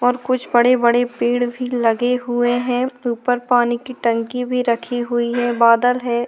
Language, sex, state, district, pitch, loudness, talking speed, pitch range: Hindi, female, Chhattisgarh, Korba, 245 Hz, -18 LUFS, 190 wpm, 240-250 Hz